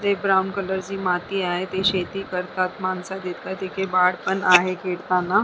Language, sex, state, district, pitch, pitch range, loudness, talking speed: Marathi, female, Maharashtra, Sindhudurg, 185 Hz, 180-190 Hz, -23 LUFS, 175 wpm